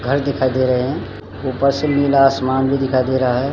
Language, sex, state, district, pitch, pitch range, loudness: Hindi, male, Uttarakhand, Tehri Garhwal, 130 Hz, 130-140 Hz, -17 LUFS